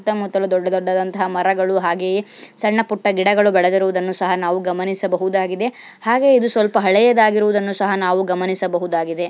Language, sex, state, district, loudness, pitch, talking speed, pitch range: Kannada, female, Karnataka, Bijapur, -17 LUFS, 190 Hz, 110 wpm, 185-210 Hz